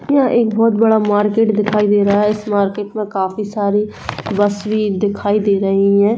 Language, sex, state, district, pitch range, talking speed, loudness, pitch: Hindi, female, Bihar, East Champaran, 200-215 Hz, 195 wpm, -16 LUFS, 210 Hz